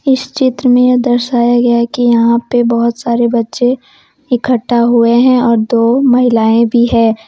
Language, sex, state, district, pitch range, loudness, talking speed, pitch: Hindi, female, Jharkhand, Deoghar, 235-250 Hz, -11 LUFS, 165 wpm, 240 Hz